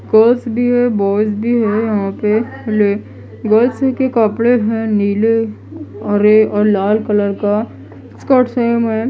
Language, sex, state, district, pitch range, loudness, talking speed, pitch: Hindi, female, Odisha, Malkangiri, 210-235 Hz, -14 LUFS, 145 wpm, 220 Hz